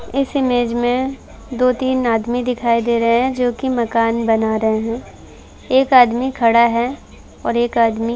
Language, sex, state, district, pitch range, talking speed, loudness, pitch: Hindi, female, Uttar Pradesh, Varanasi, 230-255 Hz, 170 wpm, -17 LUFS, 240 Hz